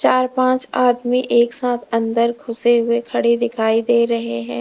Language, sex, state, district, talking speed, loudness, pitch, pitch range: Hindi, female, Uttar Pradesh, Lalitpur, 170 wpm, -18 LUFS, 235 Hz, 230-245 Hz